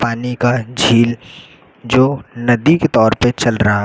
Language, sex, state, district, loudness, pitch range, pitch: Hindi, male, Uttar Pradesh, Lucknow, -14 LUFS, 115-130 Hz, 120 Hz